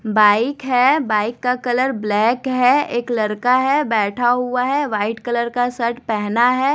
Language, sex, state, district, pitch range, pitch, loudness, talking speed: Hindi, female, Odisha, Nuapada, 220-255 Hz, 245 Hz, -18 LUFS, 170 wpm